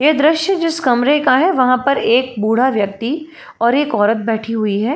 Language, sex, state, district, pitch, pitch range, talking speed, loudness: Hindi, female, Uttar Pradesh, Jalaun, 255 Hz, 225-300 Hz, 205 wpm, -15 LUFS